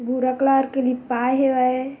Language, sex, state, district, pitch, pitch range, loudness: Chhattisgarhi, female, Chhattisgarh, Bilaspur, 255 Hz, 255-270 Hz, -20 LUFS